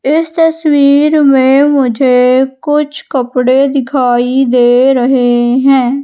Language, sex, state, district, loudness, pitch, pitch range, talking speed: Hindi, female, Madhya Pradesh, Katni, -9 LUFS, 265 Hz, 250-285 Hz, 100 wpm